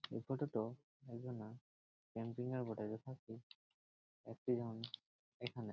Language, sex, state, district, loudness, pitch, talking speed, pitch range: Bengali, male, West Bengal, Jhargram, -47 LUFS, 115 Hz, 125 wpm, 110-125 Hz